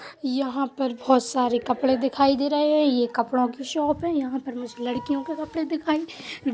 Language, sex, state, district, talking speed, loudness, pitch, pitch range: Hindi, female, Uttar Pradesh, Budaun, 200 wpm, -24 LUFS, 270 Hz, 250-300 Hz